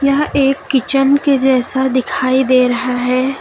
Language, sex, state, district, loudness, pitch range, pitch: Hindi, female, Uttar Pradesh, Lucknow, -14 LUFS, 255-275 Hz, 265 Hz